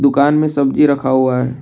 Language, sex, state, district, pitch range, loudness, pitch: Hindi, male, Assam, Kamrup Metropolitan, 130-145 Hz, -14 LUFS, 140 Hz